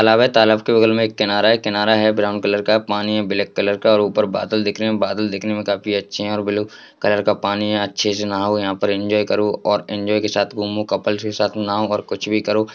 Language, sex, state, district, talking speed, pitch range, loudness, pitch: Hindi, male, Bihar, Jahanabad, 260 wpm, 105-110 Hz, -18 LUFS, 105 Hz